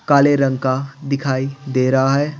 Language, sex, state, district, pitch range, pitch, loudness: Hindi, male, Bihar, Patna, 130-140 Hz, 135 Hz, -18 LUFS